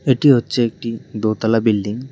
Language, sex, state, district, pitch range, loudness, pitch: Bengali, male, West Bengal, Cooch Behar, 110-125 Hz, -18 LUFS, 115 Hz